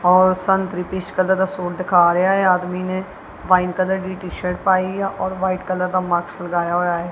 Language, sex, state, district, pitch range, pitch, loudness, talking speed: Punjabi, male, Punjab, Kapurthala, 180-190 Hz, 185 Hz, -19 LUFS, 210 wpm